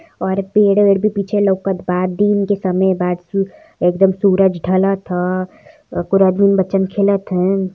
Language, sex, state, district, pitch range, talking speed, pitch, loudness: Hindi, female, Uttar Pradesh, Varanasi, 185-200 Hz, 155 wpm, 195 Hz, -16 LUFS